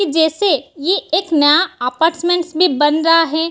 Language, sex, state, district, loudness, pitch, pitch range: Hindi, female, Bihar, Kishanganj, -15 LUFS, 330 Hz, 305-350 Hz